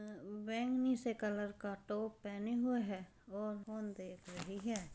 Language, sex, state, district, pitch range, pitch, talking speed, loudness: Hindi, female, Uttar Pradesh, Jyotiba Phule Nagar, 200-225 Hz, 210 Hz, 155 wpm, -42 LUFS